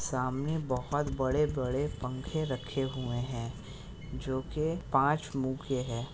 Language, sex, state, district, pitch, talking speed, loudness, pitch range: Hindi, male, Bihar, Araria, 130 Hz, 135 wpm, -33 LUFS, 130-145 Hz